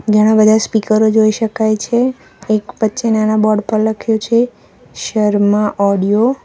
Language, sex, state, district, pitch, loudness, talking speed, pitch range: Gujarati, female, Gujarat, Valsad, 215 Hz, -14 LUFS, 150 wpm, 215-225 Hz